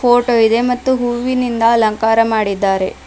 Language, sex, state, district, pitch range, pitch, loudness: Kannada, female, Karnataka, Bidar, 220-245 Hz, 230 Hz, -14 LUFS